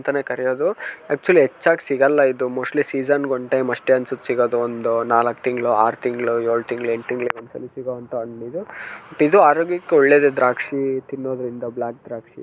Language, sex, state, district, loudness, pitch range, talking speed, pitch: Kannada, male, Karnataka, Mysore, -19 LUFS, 120-140 Hz, 175 wpm, 125 Hz